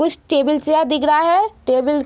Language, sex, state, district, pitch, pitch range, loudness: Hindi, female, Bihar, East Champaran, 300 Hz, 295-320 Hz, -16 LUFS